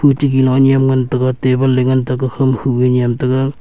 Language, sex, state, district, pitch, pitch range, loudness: Wancho, male, Arunachal Pradesh, Longding, 130 Hz, 125-135 Hz, -14 LUFS